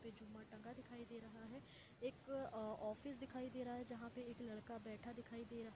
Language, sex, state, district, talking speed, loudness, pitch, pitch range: Hindi, female, Jharkhand, Sahebganj, 240 wpm, -52 LUFS, 235 Hz, 220-250 Hz